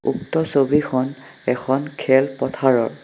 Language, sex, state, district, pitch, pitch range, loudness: Assamese, male, Assam, Sonitpur, 135 Hz, 130-140 Hz, -20 LUFS